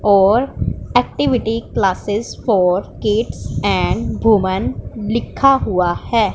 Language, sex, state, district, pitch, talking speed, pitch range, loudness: Hindi, female, Punjab, Pathankot, 210 Hz, 95 wpm, 195-230 Hz, -17 LUFS